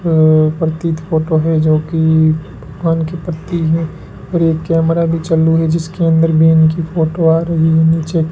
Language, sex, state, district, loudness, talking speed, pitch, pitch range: Hindi, male, Rajasthan, Bikaner, -14 LUFS, 185 wpm, 160 Hz, 160-165 Hz